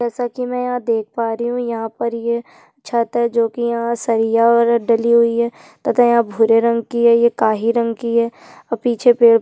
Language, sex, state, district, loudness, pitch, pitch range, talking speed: Hindi, female, Chhattisgarh, Jashpur, -17 LUFS, 235 Hz, 230-240 Hz, 235 wpm